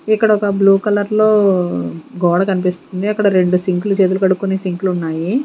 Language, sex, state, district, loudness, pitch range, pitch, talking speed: Telugu, female, Andhra Pradesh, Sri Satya Sai, -15 LUFS, 180-205 Hz, 190 Hz, 145 wpm